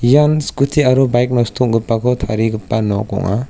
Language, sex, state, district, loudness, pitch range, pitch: Garo, male, Meghalaya, South Garo Hills, -15 LUFS, 110-130 Hz, 120 Hz